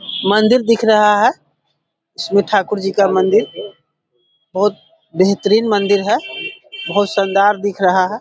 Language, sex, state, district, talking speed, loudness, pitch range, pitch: Hindi, male, Bihar, Darbhanga, 140 wpm, -15 LUFS, 190-210 Hz, 200 Hz